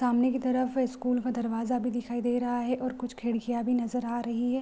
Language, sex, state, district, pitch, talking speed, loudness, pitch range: Hindi, female, Bihar, Supaul, 245 Hz, 245 wpm, -30 LUFS, 240-250 Hz